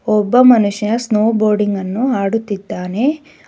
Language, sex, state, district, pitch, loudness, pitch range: Kannada, female, Karnataka, Bangalore, 215 Hz, -15 LUFS, 205-245 Hz